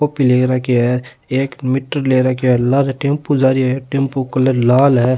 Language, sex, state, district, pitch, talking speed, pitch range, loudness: Rajasthani, male, Rajasthan, Nagaur, 130 Hz, 230 wpm, 125-135 Hz, -15 LUFS